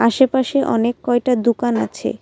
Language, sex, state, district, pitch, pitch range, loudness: Bengali, female, Assam, Kamrup Metropolitan, 245 Hz, 235-260 Hz, -18 LUFS